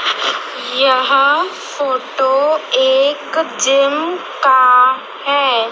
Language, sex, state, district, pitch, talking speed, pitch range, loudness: Hindi, male, Madhya Pradesh, Dhar, 275 Hz, 65 wpm, 260-290 Hz, -14 LUFS